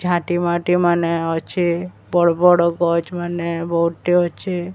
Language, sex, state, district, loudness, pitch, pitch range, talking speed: Odia, male, Odisha, Sambalpur, -18 LUFS, 175 Hz, 170-175 Hz, 100 wpm